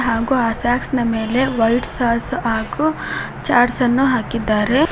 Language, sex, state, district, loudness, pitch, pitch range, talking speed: Kannada, female, Karnataka, Koppal, -18 LUFS, 245 Hz, 230-255 Hz, 145 wpm